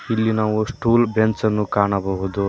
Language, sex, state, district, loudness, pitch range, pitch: Kannada, male, Karnataka, Koppal, -20 LUFS, 100-110 Hz, 110 Hz